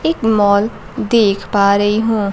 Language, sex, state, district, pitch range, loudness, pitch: Hindi, female, Bihar, Kaimur, 200-225 Hz, -14 LUFS, 210 Hz